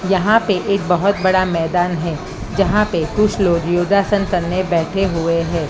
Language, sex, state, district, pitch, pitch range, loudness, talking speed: Hindi, female, Maharashtra, Mumbai Suburban, 180 Hz, 170-195 Hz, -17 LUFS, 170 wpm